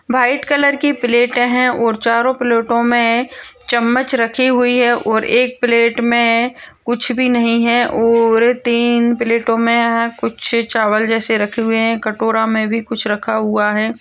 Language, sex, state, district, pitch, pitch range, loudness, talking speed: Hindi, female, Chhattisgarh, Kabirdham, 235 Hz, 225-245 Hz, -15 LUFS, 165 wpm